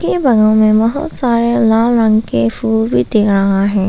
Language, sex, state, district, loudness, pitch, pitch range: Hindi, female, Arunachal Pradesh, Papum Pare, -12 LUFS, 215 Hz, 175-230 Hz